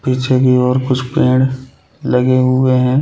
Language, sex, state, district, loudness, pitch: Hindi, male, Chhattisgarh, Balrampur, -14 LUFS, 130 Hz